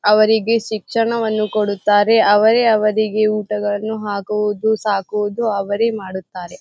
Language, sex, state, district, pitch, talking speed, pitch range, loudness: Kannada, female, Karnataka, Bijapur, 215 Hz, 90 wpm, 205-220 Hz, -17 LUFS